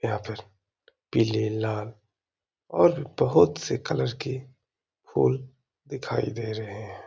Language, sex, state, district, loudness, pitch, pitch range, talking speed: Hindi, male, Uttar Pradesh, Hamirpur, -26 LUFS, 110 Hz, 105-115 Hz, 125 wpm